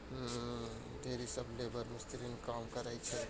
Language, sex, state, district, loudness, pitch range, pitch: Hindi, male, Bihar, Bhagalpur, -44 LUFS, 115-120 Hz, 120 Hz